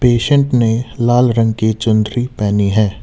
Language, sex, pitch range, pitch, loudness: Hindi, male, 110-120 Hz, 115 Hz, -14 LUFS